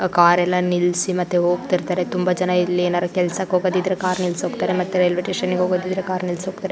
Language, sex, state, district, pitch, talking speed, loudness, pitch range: Kannada, female, Karnataka, Shimoga, 180 Hz, 195 wpm, -20 LUFS, 180-185 Hz